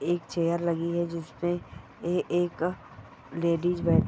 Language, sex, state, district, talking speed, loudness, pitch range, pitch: Hindi, female, Chhattisgarh, Jashpur, 130 wpm, -29 LUFS, 165-175 Hz, 170 Hz